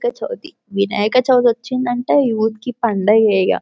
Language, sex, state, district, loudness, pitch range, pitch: Telugu, female, Telangana, Karimnagar, -17 LUFS, 215-255 Hz, 245 Hz